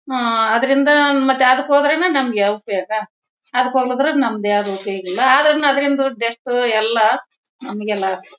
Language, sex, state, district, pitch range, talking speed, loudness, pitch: Kannada, female, Karnataka, Bellary, 215-275 Hz, 135 wpm, -16 LUFS, 245 Hz